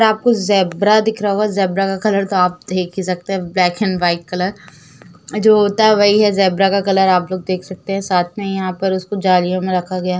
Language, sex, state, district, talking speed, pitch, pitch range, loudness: Hindi, female, Uttar Pradesh, Jalaun, 235 wpm, 190 Hz, 180-205 Hz, -16 LUFS